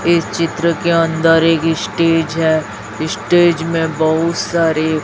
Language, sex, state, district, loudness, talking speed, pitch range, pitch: Hindi, female, Chhattisgarh, Raipur, -15 LUFS, 130 wpm, 160-170 Hz, 165 Hz